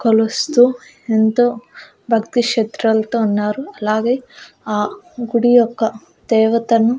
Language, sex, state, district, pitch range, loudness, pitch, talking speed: Telugu, female, Andhra Pradesh, Annamaya, 220-245 Hz, -16 LUFS, 230 Hz, 85 wpm